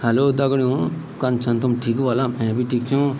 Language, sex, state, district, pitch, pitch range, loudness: Garhwali, male, Uttarakhand, Tehri Garhwal, 125 Hz, 120-135 Hz, -21 LUFS